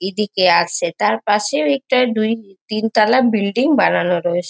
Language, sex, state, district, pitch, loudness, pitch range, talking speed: Bengali, female, West Bengal, North 24 Parganas, 215 Hz, -16 LUFS, 185-250 Hz, 160 wpm